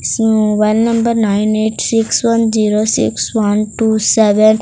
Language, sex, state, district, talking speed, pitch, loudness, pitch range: Hindi, female, Odisha, Sambalpur, 170 wpm, 215 Hz, -13 LUFS, 215-225 Hz